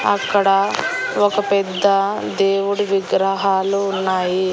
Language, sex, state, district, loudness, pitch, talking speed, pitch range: Telugu, female, Andhra Pradesh, Annamaya, -18 LUFS, 195 Hz, 80 wpm, 195-200 Hz